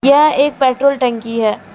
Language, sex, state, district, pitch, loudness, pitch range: Hindi, female, Jharkhand, Deoghar, 260 Hz, -14 LUFS, 230-280 Hz